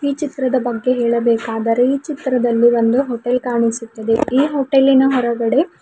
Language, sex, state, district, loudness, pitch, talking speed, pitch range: Kannada, female, Karnataka, Bidar, -16 LUFS, 250 Hz, 125 wpm, 235-270 Hz